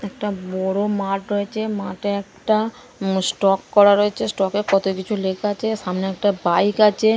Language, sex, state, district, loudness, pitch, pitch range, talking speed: Bengali, female, West Bengal, Dakshin Dinajpur, -20 LUFS, 200 Hz, 195-210 Hz, 165 wpm